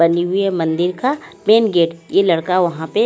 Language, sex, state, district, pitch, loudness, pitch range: Hindi, female, Haryana, Charkhi Dadri, 180 Hz, -16 LUFS, 170-205 Hz